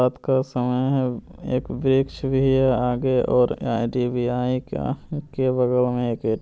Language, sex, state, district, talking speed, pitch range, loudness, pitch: Hindi, male, Bihar, Saran, 95 wpm, 125-130 Hz, -22 LUFS, 125 Hz